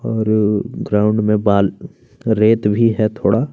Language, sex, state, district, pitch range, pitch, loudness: Hindi, male, Chhattisgarh, Kabirdham, 105-115 Hz, 110 Hz, -16 LUFS